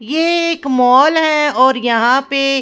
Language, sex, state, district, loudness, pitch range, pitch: Hindi, female, Punjab, Pathankot, -13 LUFS, 255-310 Hz, 275 Hz